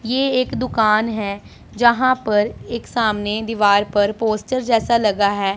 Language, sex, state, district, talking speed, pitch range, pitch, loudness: Hindi, female, Punjab, Pathankot, 150 wpm, 205-240 Hz, 220 Hz, -18 LUFS